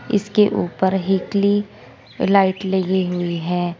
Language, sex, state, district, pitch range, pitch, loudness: Hindi, female, Uttar Pradesh, Saharanpur, 175-200 Hz, 190 Hz, -19 LUFS